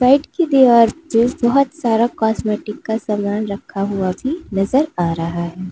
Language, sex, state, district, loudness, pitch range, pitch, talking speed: Hindi, female, Uttar Pradesh, Lalitpur, -17 LUFS, 200-260 Hz, 220 Hz, 170 wpm